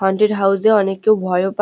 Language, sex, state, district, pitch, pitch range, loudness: Bengali, female, West Bengal, North 24 Parganas, 195 Hz, 195-215 Hz, -16 LUFS